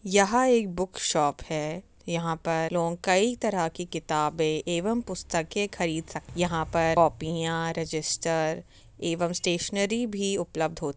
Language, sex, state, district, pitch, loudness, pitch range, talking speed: Hindi, female, Uttar Pradesh, Jyotiba Phule Nagar, 170 Hz, -27 LUFS, 160-185 Hz, 140 wpm